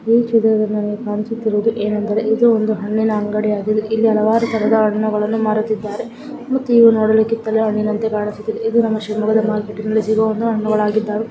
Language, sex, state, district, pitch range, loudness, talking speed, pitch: Kannada, female, Karnataka, Shimoga, 215-225 Hz, -17 LUFS, 150 wpm, 220 Hz